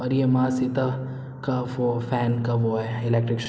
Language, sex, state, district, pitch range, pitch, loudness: Hindi, male, Bihar, Araria, 120-130 Hz, 125 Hz, -25 LUFS